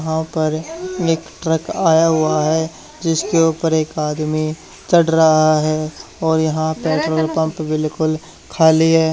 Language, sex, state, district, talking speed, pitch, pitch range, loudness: Hindi, male, Haryana, Charkhi Dadri, 140 wpm, 160 Hz, 155-160 Hz, -17 LUFS